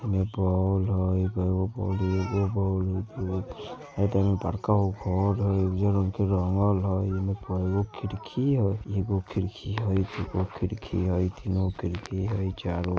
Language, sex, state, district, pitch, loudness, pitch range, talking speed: Maithili, male, Bihar, Vaishali, 95 Hz, -28 LUFS, 95-100 Hz, 150 wpm